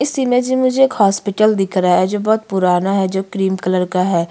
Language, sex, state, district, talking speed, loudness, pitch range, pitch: Hindi, female, Chhattisgarh, Kabirdham, 250 wpm, -16 LUFS, 185-220 Hz, 195 Hz